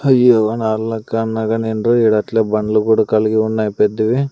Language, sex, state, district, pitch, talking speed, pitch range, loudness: Telugu, male, Andhra Pradesh, Sri Satya Sai, 110 Hz, 165 wpm, 110-115 Hz, -16 LUFS